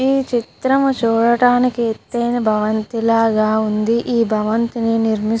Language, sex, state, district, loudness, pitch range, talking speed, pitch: Telugu, female, Andhra Pradesh, Guntur, -17 LUFS, 220-240 Hz, 135 wpm, 230 Hz